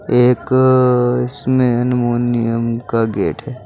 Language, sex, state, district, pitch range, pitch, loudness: Hindi, male, Uttar Pradesh, Saharanpur, 120-130 Hz, 125 Hz, -15 LUFS